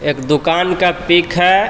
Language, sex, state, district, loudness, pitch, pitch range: Hindi, male, Jharkhand, Palamu, -14 LUFS, 175 Hz, 160-180 Hz